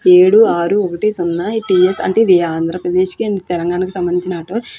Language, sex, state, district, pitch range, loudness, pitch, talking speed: Telugu, female, Andhra Pradesh, Krishna, 175-215 Hz, -14 LUFS, 185 Hz, 200 wpm